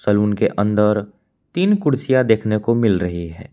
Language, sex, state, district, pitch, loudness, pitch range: Hindi, male, Jharkhand, Palamu, 105 Hz, -18 LUFS, 105-130 Hz